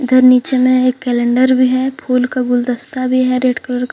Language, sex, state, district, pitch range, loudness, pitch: Hindi, female, Jharkhand, Deoghar, 250-255 Hz, -14 LUFS, 255 Hz